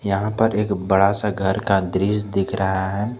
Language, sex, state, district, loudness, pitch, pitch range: Hindi, male, Jharkhand, Garhwa, -20 LUFS, 100 Hz, 95-105 Hz